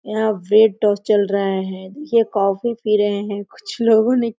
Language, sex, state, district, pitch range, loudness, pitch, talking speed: Hindi, female, Chhattisgarh, Korba, 200-225 Hz, -18 LUFS, 210 Hz, 165 wpm